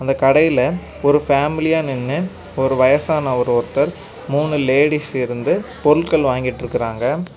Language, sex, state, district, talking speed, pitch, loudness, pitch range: Tamil, male, Tamil Nadu, Kanyakumari, 115 wpm, 140 Hz, -17 LUFS, 130-155 Hz